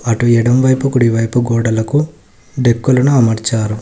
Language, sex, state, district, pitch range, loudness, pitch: Telugu, male, Telangana, Hyderabad, 115-130 Hz, -13 LUFS, 120 Hz